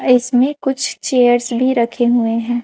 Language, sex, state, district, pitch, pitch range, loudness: Hindi, female, Chhattisgarh, Raipur, 245 Hz, 240-255 Hz, -15 LUFS